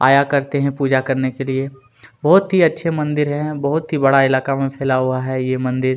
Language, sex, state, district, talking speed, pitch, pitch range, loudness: Hindi, male, Chhattisgarh, Kabirdham, 220 wpm, 135 Hz, 130-150 Hz, -17 LUFS